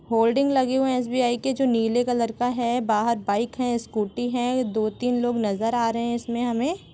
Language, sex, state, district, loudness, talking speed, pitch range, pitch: Hindi, female, Jharkhand, Sahebganj, -24 LUFS, 215 wpm, 230-250 Hz, 240 Hz